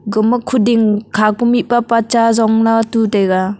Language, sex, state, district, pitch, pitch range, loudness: Wancho, female, Arunachal Pradesh, Longding, 225 Hz, 215-235 Hz, -13 LUFS